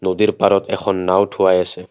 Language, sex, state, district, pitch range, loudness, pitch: Assamese, male, Assam, Kamrup Metropolitan, 90-100 Hz, -16 LUFS, 95 Hz